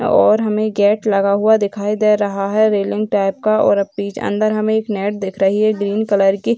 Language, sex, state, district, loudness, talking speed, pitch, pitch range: Hindi, female, Bihar, Gaya, -16 LUFS, 230 wpm, 205 Hz, 200-215 Hz